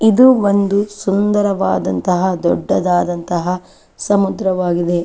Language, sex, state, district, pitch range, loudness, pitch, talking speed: Kannada, female, Karnataka, Chamarajanagar, 180-205 Hz, -15 LUFS, 190 Hz, 60 wpm